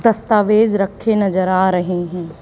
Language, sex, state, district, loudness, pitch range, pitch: Hindi, female, Haryana, Charkhi Dadri, -16 LUFS, 180-215 Hz, 195 Hz